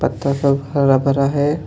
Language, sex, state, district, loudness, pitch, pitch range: Hindi, male, Jharkhand, Ranchi, -17 LUFS, 140 Hz, 140-145 Hz